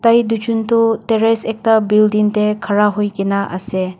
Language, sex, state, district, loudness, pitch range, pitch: Nagamese, female, Nagaland, Dimapur, -15 LUFS, 205-225 Hz, 215 Hz